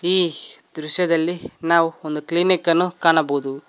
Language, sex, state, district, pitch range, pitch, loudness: Kannada, male, Karnataka, Koppal, 155-175 Hz, 165 Hz, -19 LUFS